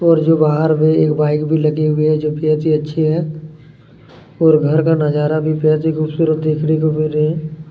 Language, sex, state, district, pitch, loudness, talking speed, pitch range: Hindi, male, Chhattisgarh, Kabirdham, 155 Hz, -15 LUFS, 210 wpm, 155-160 Hz